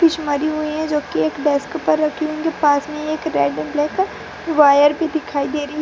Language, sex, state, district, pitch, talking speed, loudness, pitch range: Hindi, female, Bihar, Purnia, 300 Hz, 195 wpm, -18 LUFS, 290-315 Hz